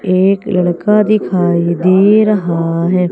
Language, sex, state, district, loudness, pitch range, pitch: Hindi, female, Madhya Pradesh, Umaria, -12 LUFS, 175-205 Hz, 185 Hz